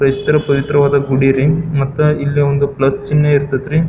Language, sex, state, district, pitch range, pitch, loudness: Kannada, male, Karnataka, Belgaum, 135-150 Hz, 140 Hz, -14 LUFS